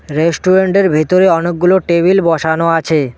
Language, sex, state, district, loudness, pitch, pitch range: Bengali, male, West Bengal, Cooch Behar, -12 LUFS, 170 Hz, 160-185 Hz